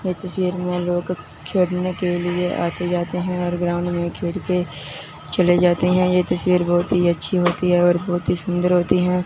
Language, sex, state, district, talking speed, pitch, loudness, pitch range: Hindi, male, Punjab, Fazilka, 200 wpm, 180 Hz, -20 LUFS, 175-180 Hz